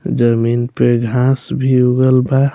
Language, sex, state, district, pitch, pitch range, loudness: Bhojpuri, male, Bihar, Muzaffarpur, 125 Hz, 120-130 Hz, -14 LUFS